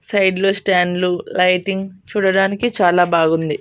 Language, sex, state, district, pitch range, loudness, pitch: Telugu, female, Andhra Pradesh, Annamaya, 180-195 Hz, -16 LUFS, 185 Hz